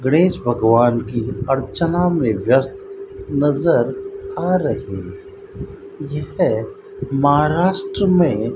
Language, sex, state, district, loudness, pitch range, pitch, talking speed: Hindi, male, Rajasthan, Bikaner, -18 LUFS, 130-200 Hz, 160 Hz, 90 wpm